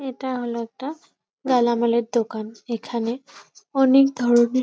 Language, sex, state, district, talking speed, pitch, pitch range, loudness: Bengali, female, West Bengal, Purulia, 80 wpm, 240 Hz, 235-265 Hz, -22 LUFS